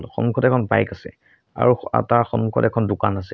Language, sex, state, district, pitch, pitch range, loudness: Assamese, male, Assam, Sonitpur, 115 Hz, 110-120 Hz, -20 LUFS